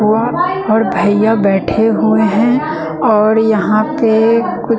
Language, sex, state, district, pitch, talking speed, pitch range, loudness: Hindi, female, Bihar, West Champaran, 220 Hz, 115 wpm, 215-230 Hz, -12 LUFS